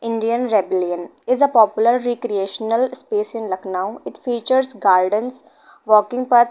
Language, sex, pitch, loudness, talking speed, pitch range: English, female, 225 Hz, -18 LUFS, 140 wpm, 200-245 Hz